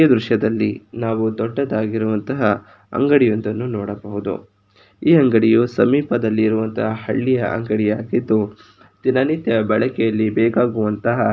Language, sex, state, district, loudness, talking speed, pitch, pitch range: Kannada, male, Karnataka, Shimoga, -19 LUFS, 90 wpm, 110 Hz, 105-120 Hz